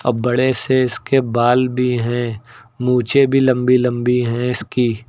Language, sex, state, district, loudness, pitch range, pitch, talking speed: Hindi, male, Uttar Pradesh, Lucknow, -17 LUFS, 120-125 Hz, 125 Hz, 155 wpm